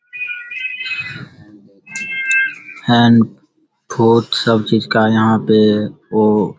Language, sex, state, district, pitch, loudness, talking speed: Hindi, male, Bihar, Begusarai, 115 Hz, -15 LUFS, 65 wpm